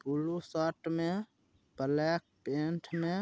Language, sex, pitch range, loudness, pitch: Bhojpuri, male, 155-170 Hz, -35 LUFS, 165 Hz